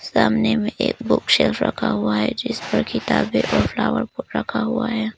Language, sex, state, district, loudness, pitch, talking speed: Hindi, female, Arunachal Pradesh, Papum Pare, -20 LUFS, 110 Hz, 185 wpm